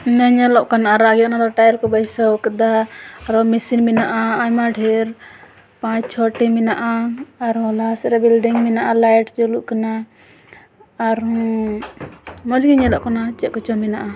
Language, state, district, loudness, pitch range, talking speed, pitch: Santali, Jharkhand, Sahebganj, -16 LUFS, 225-235 Hz, 160 wpm, 230 Hz